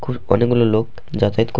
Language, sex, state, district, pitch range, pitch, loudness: Bengali, male, West Bengal, Malda, 100-120 Hz, 115 Hz, -18 LUFS